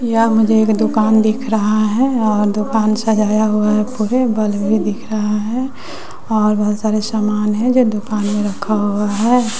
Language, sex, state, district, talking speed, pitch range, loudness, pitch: Hindi, female, Bihar, West Champaran, 180 wpm, 210-225 Hz, -16 LUFS, 215 Hz